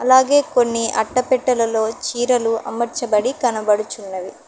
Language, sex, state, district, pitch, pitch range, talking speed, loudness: Telugu, female, Telangana, Hyderabad, 235 Hz, 220-250 Hz, 80 wpm, -18 LUFS